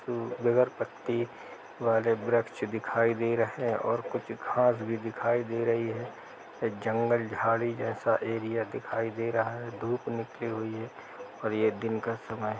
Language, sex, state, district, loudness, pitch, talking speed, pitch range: Hindi, male, Uttar Pradesh, Jalaun, -30 LUFS, 115 Hz, 160 wpm, 110-120 Hz